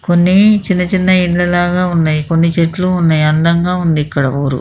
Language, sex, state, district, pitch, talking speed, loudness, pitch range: Telugu, female, Andhra Pradesh, Krishna, 175 Hz, 170 wpm, -12 LUFS, 160-180 Hz